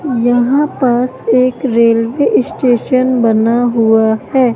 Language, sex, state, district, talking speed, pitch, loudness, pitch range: Hindi, female, Madhya Pradesh, Katni, 105 wpm, 245 Hz, -12 LUFS, 230-255 Hz